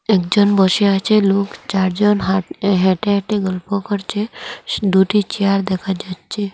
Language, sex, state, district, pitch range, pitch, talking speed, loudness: Bengali, female, Assam, Hailakandi, 190-205 Hz, 195 Hz, 130 wpm, -17 LUFS